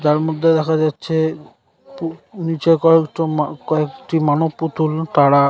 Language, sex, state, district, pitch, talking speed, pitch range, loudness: Bengali, male, West Bengal, North 24 Parganas, 160 Hz, 130 wpm, 155-165 Hz, -18 LUFS